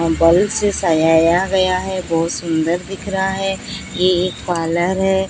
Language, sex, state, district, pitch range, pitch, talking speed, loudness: Hindi, female, Odisha, Sambalpur, 165-190 Hz, 180 Hz, 160 wpm, -17 LUFS